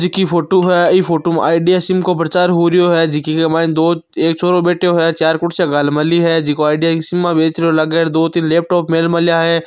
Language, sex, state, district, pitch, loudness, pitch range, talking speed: Marwari, male, Rajasthan, Churu, 165 Hz, -13 LUFS, 165-175 Hz, 180 wpm